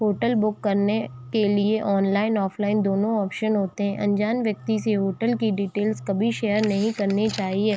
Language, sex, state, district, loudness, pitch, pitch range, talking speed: Hindi, female, Chhattisgarh, Raigarh, -23 LUFS, 210 Hz, 200-220 Hz, 170 wpm